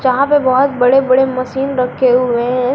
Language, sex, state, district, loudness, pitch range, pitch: Hindi, female, Jharkhand, Garhwa, -13 LUFS, 250-270 Hz, 255 Hz